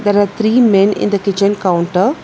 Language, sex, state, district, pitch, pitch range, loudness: English, female, Telangana, Hyderabad, 200 Hz, 195-220 Hz, -13 LUFS